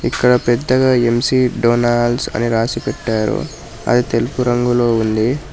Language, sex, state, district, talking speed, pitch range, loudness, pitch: Telugu, male, Telangana, Hyderabad, 120 wpm, 115-125 Hz, -16 LUFS, 120 Hz